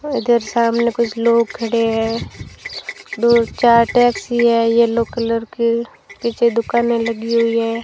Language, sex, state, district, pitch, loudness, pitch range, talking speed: Hindi, female, Rajasthan, Bikaner, 235 Hz, -16 LUFS, 230-235 Hz, 140 wpm